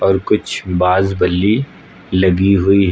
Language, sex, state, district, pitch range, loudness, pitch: Hindi, male, Uttar Pradesh, Lucknow, 90-100 Hz, -15 LUFS, 95 Hz